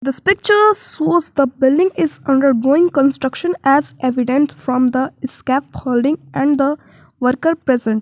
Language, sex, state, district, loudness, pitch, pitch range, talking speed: English, female, Jharkhand, Garhwa, -16 LUFS, 275 Hz, 260-325 Hz, 135 wpm